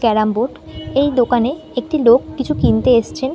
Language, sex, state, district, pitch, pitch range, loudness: Bengali, female, West Bengal, North 24 Parganas, 245 Hz, 235-275 Hz, -16 LUFS